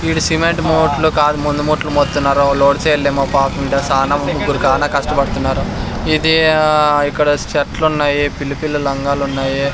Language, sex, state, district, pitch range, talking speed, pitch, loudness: Telugu, male, Andhra Pradesh, Sri Satya Sai, 140-155 Hz, 125 wpm, 145 Hz, -15 LUFS